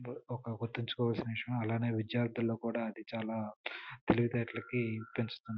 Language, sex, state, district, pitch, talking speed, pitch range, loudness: Telugu, male, Andhra Pradesh, Srikakulam, 115 Hz, 120 wpm, 115-120 Hz, -37 LUFS